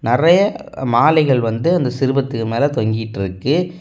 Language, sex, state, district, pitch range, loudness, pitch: Tamil, male, Tamil Nadu, Kanyakumari, 115-155 Hz, -17 LUFS, 135 Hz